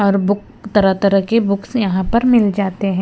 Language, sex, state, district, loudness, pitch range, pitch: Hindi, female, Himachal Pradesh, Shimla, -16 LUFS, 195-215 Hz, 200 Hz